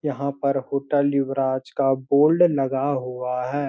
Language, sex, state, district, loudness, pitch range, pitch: Hindi, male, Uttarakhand, Uttarkashi, -22 LUFS, 135-145 Hz, 140 Hz